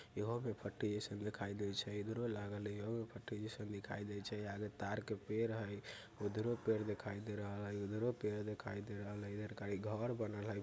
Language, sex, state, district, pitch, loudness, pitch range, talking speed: Bajjika, male, Bihar, Vaishali, 105 Hz, -44 LUFS, 100-110 Hz, 205 wpm